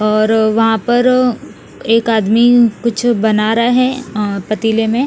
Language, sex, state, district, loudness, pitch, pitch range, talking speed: Hindi, female, Punjab, Fazilka, -13 LUFS, 225 Hz, 220-240 Hz, 140 wpm